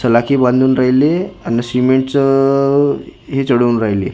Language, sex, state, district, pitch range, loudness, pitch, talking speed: Marathi, male, Maharashtra, Gondia, 120-140 Hz, -14 LUFS, 130 Hz, 160 wpm